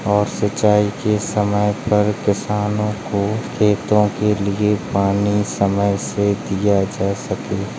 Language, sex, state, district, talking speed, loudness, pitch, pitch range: Hindi, male, Uttar Pradesh, Jalaun, 125 wpm, -18 LUFS, 105 Hz, 100-105 Hz